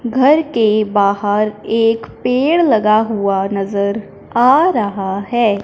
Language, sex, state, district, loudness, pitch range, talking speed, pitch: Hindi, female, Punjab, Fazilka, -15 LUFS, 200-245 Hz, 115 wpm, 215 Hz